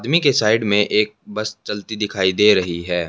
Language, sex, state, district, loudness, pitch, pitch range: Hindi, male, Haryana, Jhajjar, -18 LUFS, 105 Hz, 95-110 Hz